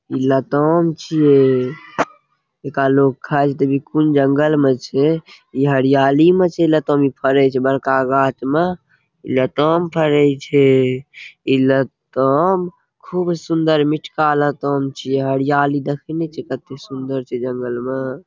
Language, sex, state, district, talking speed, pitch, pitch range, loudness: Maithili, male, Bihar, Saharsa, 150 wpm, 140 Hz, 135-155 Hz, -17 LUFS